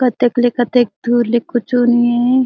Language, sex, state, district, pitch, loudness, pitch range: Surgujia, female, Chhattisgarh, Sarguja, 240 Hz, -15 LUFS, 240-245 Hz